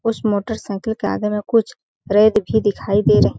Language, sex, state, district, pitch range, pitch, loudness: Hindi, female, Chhattisgarh, Balrampur, 200-220 Hz, 210 Hz, -18 LUFS